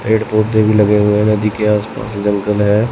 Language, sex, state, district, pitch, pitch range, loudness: Hindi, male, Chandigarh, Chandigarh, 105 Hz, 105-110 Hz, -14 LUFS